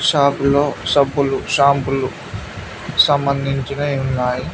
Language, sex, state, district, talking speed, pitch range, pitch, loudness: Telugu, male, Telangana, Mahabubabad, 80 wpm, 135-140 Hz, 140 Hz, -17 LUFS